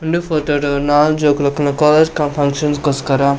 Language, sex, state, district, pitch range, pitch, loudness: Tulu, male, Karnataka, Dakshina Kannada, 140-150 Hz, 145 Hz, -15 LUFS